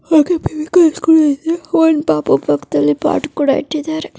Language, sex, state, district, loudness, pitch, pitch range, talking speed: Kannada, female, Karnataka, Dakshina Kannada, -14 LUFS, 310 Hz, 280-325 Hz, 155 wpm